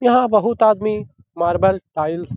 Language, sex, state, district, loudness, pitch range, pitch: Hindi, male, Bihar, Jahanabad, -18 LUFS, 175-225 Hz, 210 Hz